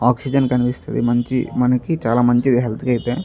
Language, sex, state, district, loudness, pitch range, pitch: Telugu, male, Andhra Pradesh, Chittoor, -18 LUFS, 120-130 Hz, 125 Hz